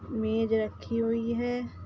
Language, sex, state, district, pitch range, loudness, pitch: Hindi, female, Bihar, Gopalganj, 220-235 Hz, -29 LUFS, 230 Hz